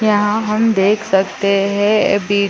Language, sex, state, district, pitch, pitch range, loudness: Hindi, female, Chhattisgarh, Sarguja, 205 Hz, 200-215 Hz, -15 LUFS